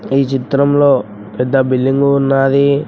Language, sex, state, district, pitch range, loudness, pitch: Telugu, male, Telangana, Mahabubabad, 130-140 Hz, -13 LUFS, 135 Hz